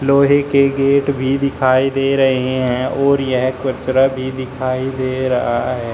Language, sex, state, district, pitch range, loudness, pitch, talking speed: Hindi, male, Uttar Pradesh, Shamli, 130-140 Hz, -16 LUFS, 130 Hz, 160 wpm